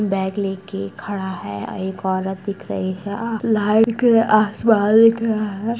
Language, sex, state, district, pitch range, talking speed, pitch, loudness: Hindi, female, Bihar, Gopalganj, 190-225 Hz, 115 wpm, 205 Hz, -19 LUFS